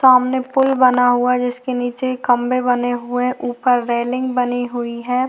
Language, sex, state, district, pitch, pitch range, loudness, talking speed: Hindi, female, Bihar, Vaishali, 250 Hz, 245-255 Hz, -18 LUFS, 195 wpm